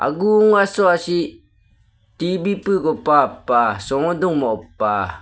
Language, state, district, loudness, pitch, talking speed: Nyishi, Arunachal Pradesh, Papum Pare, -18 LUFS, 170 Hz, 80 wpm